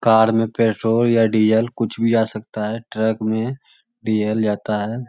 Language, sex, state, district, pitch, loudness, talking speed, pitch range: Magahi, male, Bihar, Lakhisarai, 110 Hz, -19 LUFS, 175 wpm, 110-115 Hz